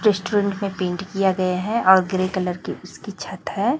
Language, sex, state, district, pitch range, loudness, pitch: Hindi, female, Chhattisgarh, Raipur, 185-205 Hz, -21 LUFS, 190 Hz